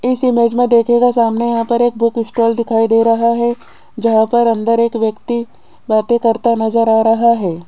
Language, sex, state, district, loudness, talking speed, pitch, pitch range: Hindi, female, Rajasthan, Jaipur, -14 LUFS, 195 wpm, 230 Hz, 225-235 Hz